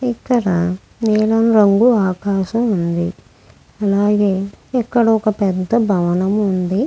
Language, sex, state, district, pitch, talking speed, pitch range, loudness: Telugu, female, Andhra Pradesh, Krishna, 205 Hz, 80 wpm, 190-225 Hz, -16 LUFS